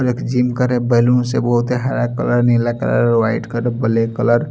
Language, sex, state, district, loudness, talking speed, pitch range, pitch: Hindi, male, Chhattisgarh, Raipur, -16 LUFS, 210 wpm, 115-125 Hz, 120 Hz